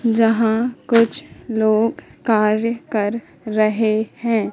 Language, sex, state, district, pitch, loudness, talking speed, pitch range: Hindi, female, Madhya Pradesh, Katni, 225 Hz, -19 LUFS, 95 wpm, 215-230 Hz